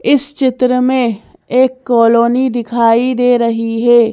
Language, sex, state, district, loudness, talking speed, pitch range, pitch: Hindi, female, Madhya Pradesh, Bhopal, -12 LUFS, 115 wpm, 230-255 Hz, 245 Hz